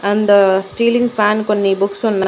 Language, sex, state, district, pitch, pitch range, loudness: Telugu, female, Andhra Pradesh, Annamaya, 205 Hz, 200-215 Hz, -14 LUFS